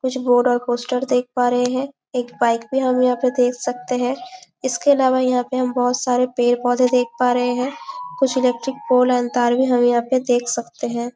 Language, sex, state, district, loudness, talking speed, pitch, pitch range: Hindi, female, Chhattisgarh, Bastar, -19 LUFS, 230 wpm, 250 Hz, 245-260 Hz